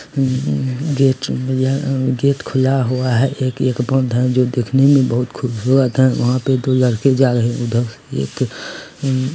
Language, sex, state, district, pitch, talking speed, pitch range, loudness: Hindi, male, Bihar, Lakhisarai, 130 Hz, 140 wpm, 125-135 Hz, -17 LUFS